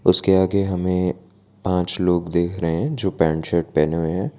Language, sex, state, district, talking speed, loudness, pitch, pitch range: Hindi, male, Gujarat, Valsad, 190 wpm, -21 LUFS, 90 Hz, 85-95 Hz